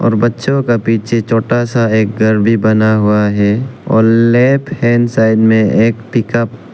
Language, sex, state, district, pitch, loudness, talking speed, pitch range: Hindi, male, Arunachal Pradesh, Lower Dibang Valley, 115 Hz, -12 LUFS, 180 wpm, 110-120 Hz